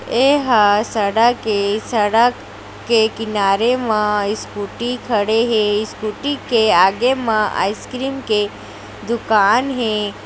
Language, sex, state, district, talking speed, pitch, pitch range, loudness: Chhattisgarhi, female, Chhattisgarh, Raigarh, 105 wpm, 220 Hz, 210-240 Hz, -17 LUFS